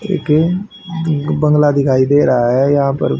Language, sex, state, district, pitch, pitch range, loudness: Hindi, male, Haryana, Rohtak, 150 Hz, 135-165 Hz, -14 LUFS